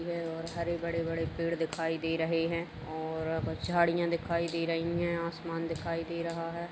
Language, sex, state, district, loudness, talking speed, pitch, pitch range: Hindi, female, Uttar Pradesh, Jalaun, -33 LUFS, 185 wpm, 165 Hz, 165-170 Hz